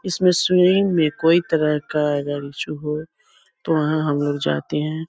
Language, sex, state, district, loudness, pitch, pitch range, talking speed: Hindi, female, Bihar, East Champaran, -20 LUFS, 155 Hz, 150-170 Hz, 175 wpm